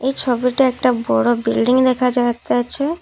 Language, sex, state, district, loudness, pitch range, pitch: Bengali, female, Assam, Kamrup Metropolitan, -17 LUFS, 235-260 Hz, 250 Hz